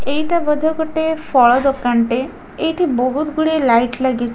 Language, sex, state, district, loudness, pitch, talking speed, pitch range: Odia, female, Odisha, Khordha, -16 LUFS, 275 Hz, 140 wpm, 245-315 Hz